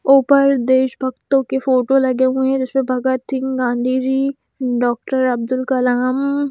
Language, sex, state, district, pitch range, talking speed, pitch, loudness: Hindi, female, Madhya Pradesh, Bhopal, 255-270 Hz, 140 wpm, 260 Hz, -17 LUFS